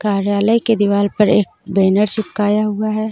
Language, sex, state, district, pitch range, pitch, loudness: Hindi, female, Jharkhand, Deoghar, 200-215 Hz, 210 Hz, -16 LUFS